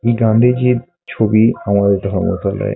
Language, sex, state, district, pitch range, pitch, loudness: Bengali, male, West Bengal, Kolkata, 100-120 Hz, 110 Hz, -15 LUFS